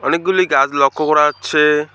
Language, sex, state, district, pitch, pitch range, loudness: Bengali, male, West Bengal, Alipurduar, 150 Hz, 140-155 Hz, -14 LUFS